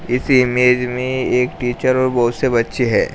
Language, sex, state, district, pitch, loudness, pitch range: Hindi, male, Uttar Pradesh, Shamli, 125 Hz, -16 LUFS, 125-130 Hz